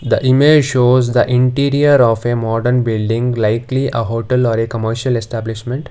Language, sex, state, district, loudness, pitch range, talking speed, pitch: English, male, Karnataka, Bangalore, -14 LUFS, 115-130 Hz, 160 wpm, 120 Hz